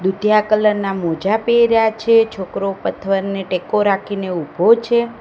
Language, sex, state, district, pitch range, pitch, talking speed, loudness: Gujarati, female, Gujarat, Gandhinagar, 190-225 Hz, 200 Hz, 140 wpm, -17 LUFS